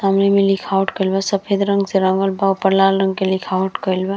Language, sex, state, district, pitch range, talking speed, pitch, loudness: Bhojpuri, female, Uttar Pradesh, Gorakhpur, 190-195 Hz, 245 wpm, 195 Hz, -17 LUFS